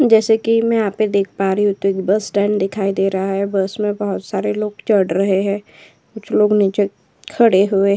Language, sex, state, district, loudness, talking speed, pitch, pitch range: Hindi, female, Uttar Pradesh, Hamirpur, -17 LUFS, 240 wpm, 200 Hz, 195-210 Hz